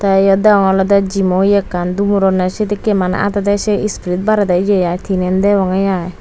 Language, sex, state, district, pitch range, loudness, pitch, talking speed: Chakma, female, Tripura, Unakoti, 185-205 Hz, -14 LUFS, 195 Hz, 195 wpm